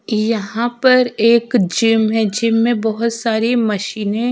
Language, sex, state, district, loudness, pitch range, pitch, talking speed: Hindi, female, Chhattisgarh, Raipur, -16 LUFS, 220-235 Hz, 230 Hz, 155 wpm